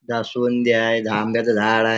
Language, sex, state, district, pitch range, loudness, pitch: Marathi, male, Maharashtra, Chandrapur, 110-120 Hz, -19 LUFS, 115 Hz